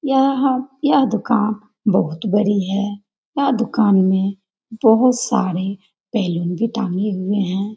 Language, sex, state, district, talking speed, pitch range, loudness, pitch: Hindi, female, Bihar, Jamui, 125 wpm, 195-235 Hz, -18 LUFS, 210 Hz